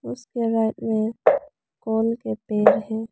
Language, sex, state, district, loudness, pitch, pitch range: Hindi, female, Arunachal Pradesh, Lower Dibang Valley, -22 LUFS, 220 Hz, 215-230 Hz